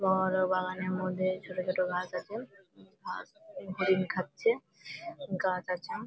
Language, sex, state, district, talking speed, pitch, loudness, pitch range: Bengali, female, West Bengal, Malda, 150 wpm, 185 Hz, -33 LUFS, 185-210 Hz